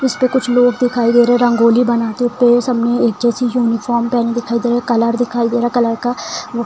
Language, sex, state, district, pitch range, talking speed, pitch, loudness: Hindi, female, Bihar, Saran, 235-245 Hz, 250 wpm, 240 Hz, -15 LUFS